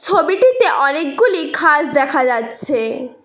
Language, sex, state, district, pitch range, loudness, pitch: Bengali, female, West Bengal, Cooch Behar, 255-340 Hz, -15 LUFS, 295 Hz